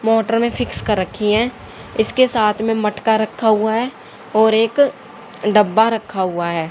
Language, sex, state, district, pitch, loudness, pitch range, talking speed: Hindi, female, Haryana, Jhajjar, 220 Hz, -17 LUFS, 210-230 Hz, 170 wpm